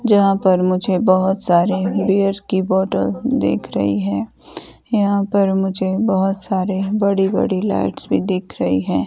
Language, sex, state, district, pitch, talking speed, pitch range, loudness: Hindi, female, Himachal Pradesh, Shimla, 190 Hz, 150 wpm, 185-200 Hz, -18 LUFS